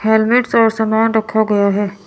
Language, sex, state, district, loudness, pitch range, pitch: Hindi, female, Chandigarh, Chandigarh, -14 LUFS, 205-225 Hz, 220 Hz